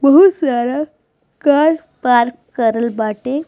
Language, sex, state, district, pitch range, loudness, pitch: Bhojpuri, female, Bihar, East Champaran, 240-305 Hz, -15 LUFS, 275 Hz